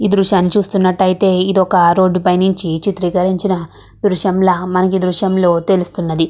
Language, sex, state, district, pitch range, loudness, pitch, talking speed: Telugu, female, Andhra Pradesh, Krishna, 180-195 Hz, -14 LUFS, 185 Hz, 145 wpm